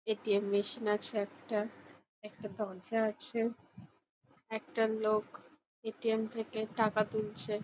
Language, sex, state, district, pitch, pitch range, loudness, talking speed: Bengali, female, West Bengal, Jhargram, 215 Hz, 210-225 Hz, -33 LUFS, 100 wpm